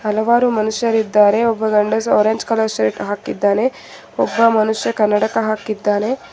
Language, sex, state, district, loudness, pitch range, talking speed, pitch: Kannada, female, Karnataka, Bangalore, -16 LUFS, 210-225 Hz, 115 wpm, 220 Hz